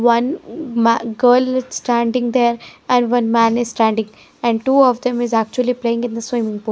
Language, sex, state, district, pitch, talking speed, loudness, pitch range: English, female, Haryana, Jhajjar, 240 Hz, 195 wpm, -17 LUFS, 230-250 Hz